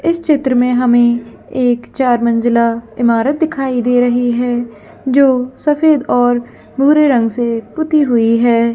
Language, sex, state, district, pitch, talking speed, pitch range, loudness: Hindi, female, Jharkhand, Jamtara, 245 Hz, 135 wpm, 235-275 Hz, -13 LUFS